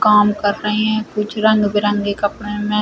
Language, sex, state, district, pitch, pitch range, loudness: Hindi, female, Chhattisgarh, Rajnandgaon, 210 Hz, 205-215 Hz, -17 LUFS